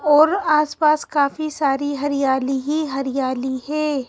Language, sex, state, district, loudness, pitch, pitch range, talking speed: Hindi, female, Madhya Pradesh, Bhopal, -20 LUFS, 285 Hz, 270-305 Hz, 115 wpm